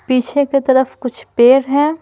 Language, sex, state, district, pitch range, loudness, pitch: Hindi, female, Bihar, Patna, 250-285 Hz, -14 LUFS, 265 Hz